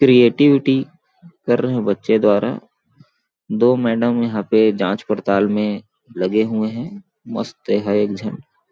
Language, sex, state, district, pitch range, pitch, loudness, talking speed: Hindi, male, Chhattisgarh, Balrampur, 105-125 Hz, 110 Hz, -18 LUFS, 135 wpm